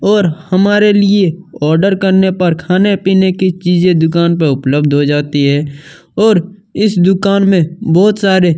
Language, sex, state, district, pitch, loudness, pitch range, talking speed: Hindi, male, Chhattisgarh, Kabirdham, 185 Hz, -11 LUFS, 160-195 Hz, 145 wpm